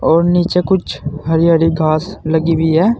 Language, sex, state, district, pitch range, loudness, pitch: Hindi, male, Uttar Pradesh, Saharanpur, 160-175 Hz, -14 LUFS, 165 Hz